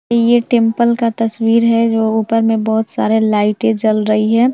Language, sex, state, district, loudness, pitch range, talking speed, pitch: Hindi, female, Bihar, Jamui, -14 LUFS, 220-230 Hz, 185 wpm, 225 Hz